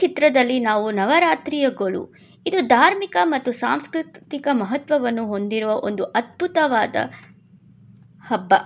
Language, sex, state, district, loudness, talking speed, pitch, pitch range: Kannada, female, Karnataka, Bangalore, -20 LUFS, 85 wpm, 270 Hz, 220-305 Hz